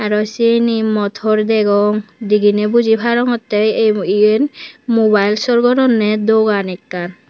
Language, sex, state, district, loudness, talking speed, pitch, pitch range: Chakma, female, Tripura, Unakoti, -14 LUFS, 105 wpm, 215 Hz, 210-230 Hz